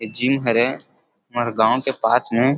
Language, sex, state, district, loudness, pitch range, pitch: Chhattisgarhi, male, Chhattisgarh, Rajnandgaon, -19 LUFS, 115-130 Hz, 120 Hz